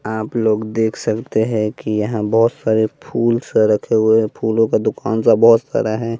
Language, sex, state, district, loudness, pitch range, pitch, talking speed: Hindi, male, Bihar, West Champaran, -17 LUFS, 110-115 Hz, 110 Hz, 205 wpm